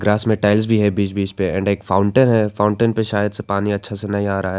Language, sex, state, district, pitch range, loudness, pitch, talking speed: Hindi, male, Arunachal Pradesh, Lower Dibang Valley, 100-105 Hz, -18 LUFS, 105 Hz, 290 wpm